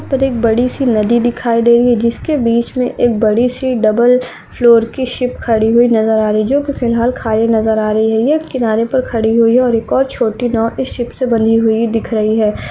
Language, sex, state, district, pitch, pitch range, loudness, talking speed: Hindi, male, Chhattisgarh, Balrampur, 235 Hz, 225-250 Hz, -13 LUFS, 255 wpm